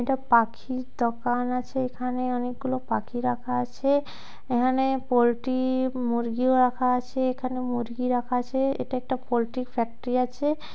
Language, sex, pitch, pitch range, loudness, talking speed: Bengali, female, 250 Hz, 245-260 Hz, -26 LUFS, 130 wpm